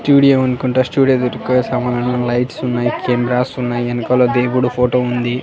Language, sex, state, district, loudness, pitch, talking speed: Telugu, male, Andhra Pradesh, Annamaya, -16 LUFS, 125 Hz, 155 wpm